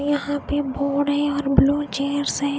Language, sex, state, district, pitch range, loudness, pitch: Hindi, female, Odisha, Khordha, 280-290 Hz, -22 LUFS, 285 Hz